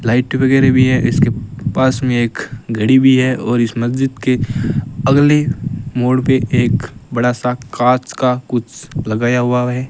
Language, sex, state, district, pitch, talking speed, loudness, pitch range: Hindi, male, Rajasthan, Bikaner, 125 Hz, 165 wpm, -15 LUFS, 120-130 Hz